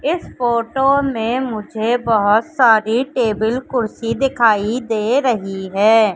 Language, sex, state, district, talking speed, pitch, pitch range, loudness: Hindi, female, Madhya Pradesh, Katni, 115 wpm, 230 Hz, 220-255 Hz, -17 LUFS